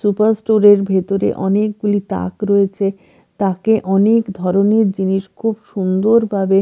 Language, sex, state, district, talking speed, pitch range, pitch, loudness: Bengali, female, Bihar, Katihar, 120 wpm, 195-215 Hz, 200 Hz, -16 LUFS